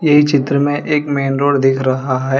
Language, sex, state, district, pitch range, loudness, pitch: Hindi, male, Telangana, Hyderabad, 135-145 Hz, -15 LUFS, 140 Hz